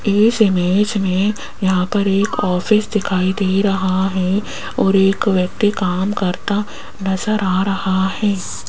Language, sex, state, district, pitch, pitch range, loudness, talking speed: Hindi, female, Rajasthan, Jaipur, 195 Hz, 185-205 Hz, -17 LUFS, 140 wpm